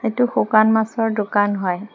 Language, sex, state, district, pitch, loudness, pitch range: Assamese, female, Assam, Hailakandi, 215 Hz, -18 LUFS, 205-225 Hz